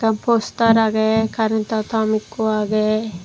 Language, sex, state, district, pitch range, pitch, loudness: Chakma, female, Tripura, Dhalai, 215-225 Hz, 220 Hz, -19 LUFS